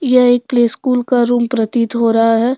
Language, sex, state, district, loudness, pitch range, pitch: Hindi, female, Jharkhand, Deoghar, -14 LUFS, 230-250 Hz, 240 Hz